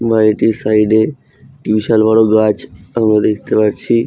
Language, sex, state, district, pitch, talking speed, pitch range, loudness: Bengali, male, West Bengal, Jhargram, 110 Hz, 135 wpm, 110-115 Hz, -13 LUFS